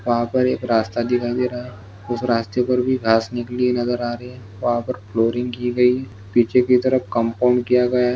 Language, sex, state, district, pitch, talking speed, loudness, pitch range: Hindi, male, Chhattisgarh, Jashpur, 120 Hz, 235 wpm, -20 LUFS, 120-125 Hz